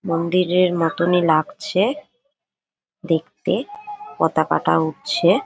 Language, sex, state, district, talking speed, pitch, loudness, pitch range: Bengali, female, West Bengal, Paschim Medinipur, 65 wpm, 185 Hz, -20 LUFS, 170-280 Hz